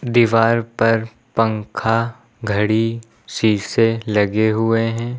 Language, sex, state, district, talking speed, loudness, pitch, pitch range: Hindi, male, Uttar Pradesh, Lucknow, 90 wpm, -18 LUFS, 115 Hz, 110-115 Hz